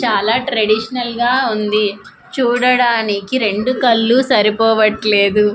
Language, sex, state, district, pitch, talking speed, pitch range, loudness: Telugu, female, Andhra Pradesh, Manyam, 225 Hz, 85 wpm, 210-245 Hz, -14 LUFS